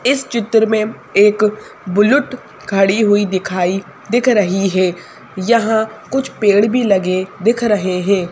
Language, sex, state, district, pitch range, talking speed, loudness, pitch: Hindi, female, Madhya Pradesh, Bhopal, 195-230 Hz, 135 wpm, -15 LUFS, 210 Hz